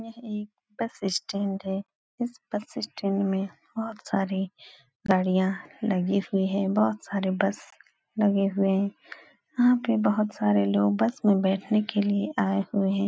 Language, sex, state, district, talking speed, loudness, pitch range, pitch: Hindi, female, Uttar Pradesh, Etah, 155 wpm, -27 LUFS, 195-215 Hz, 200 Hz